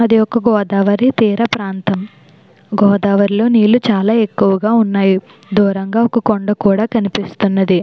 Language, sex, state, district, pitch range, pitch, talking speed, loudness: Telugu, female, Andhra Pradesh, Chittoor, 200-225 Hz, 205 Hz, 115 wpm, -14 LUFS